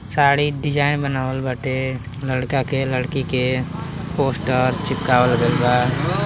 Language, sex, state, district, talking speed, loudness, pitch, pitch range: Bhojpuri, male, Uttar Pradesh, Deoria, 115 wpm, -20 LUFS, 130 Hz, 130-145 Hz